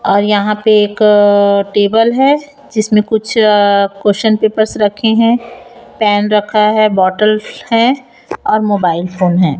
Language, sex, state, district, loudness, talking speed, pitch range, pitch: Hindi, female, Chhattisgarh, Raipur, -12 LUFS, 130 wpm, 205-225 Hz, 210 Hz